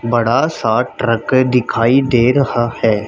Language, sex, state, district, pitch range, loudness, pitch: Hindi, male, Haryana, Charkhi Dadri, 115-130 Hz, -14 LUFS, 120 Hz